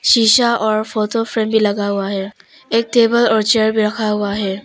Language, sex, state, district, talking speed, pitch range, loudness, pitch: Hindi, female, Arunachal Pradesh, Papum Pare, 205 wpm, 205-230 Hz, -15 LUFS, 220 Hz